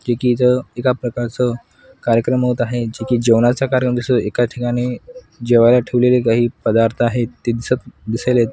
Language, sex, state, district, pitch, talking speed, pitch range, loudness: Marathi, male, Maharashtra, Washim, 120 Hz, 155 wpm, 115-125 Hz, -17 LUFS